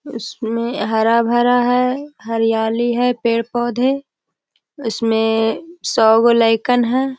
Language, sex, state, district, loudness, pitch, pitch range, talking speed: Hindi, female, Bihar, Jahanabad, -17 LUFS, 235 Hz, 225-250 Hz, 85 wpm